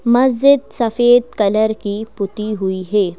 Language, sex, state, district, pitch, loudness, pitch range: Hindi, female, Madhya Pradesh, Bhopal, 220 Hz, -16 LUFS, 205-245 Hz